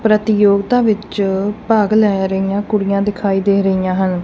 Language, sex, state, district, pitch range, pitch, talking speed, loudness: Punjabi, female, Punjab, Kapurthala, 195-215 Hz, 200 Hz, 140 wpm, -15 LUFS